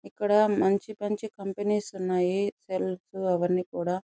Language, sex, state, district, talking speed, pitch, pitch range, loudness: Telugu, female, Andhra Pradesh, Chittoor, 135 wpm, 195 Hz, 185-210 Hz, -28 LUFS